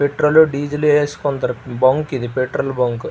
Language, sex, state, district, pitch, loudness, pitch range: Telugu, male, Andhra Pradesh, Srikakulam, 135 Hz, -17 LUFS, 125-150 Hz